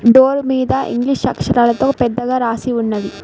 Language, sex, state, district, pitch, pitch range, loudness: Telugu, female, Telangana, Mahabubabad, 250 Hz, 235-260 Hz, -15 LUFS